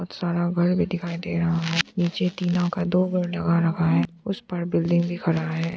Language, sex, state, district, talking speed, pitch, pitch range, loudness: Hindi, female, Arunachal Pradesh, Papum Pare, 220 wpm, 175 Hz, 170-180 Hz, -24 LUFS